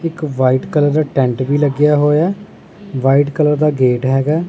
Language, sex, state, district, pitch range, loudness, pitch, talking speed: Punjabi, male, Punjab, Pathankot, 135-155 Hz, -14 LUFS, 145 Hz, 175 wpm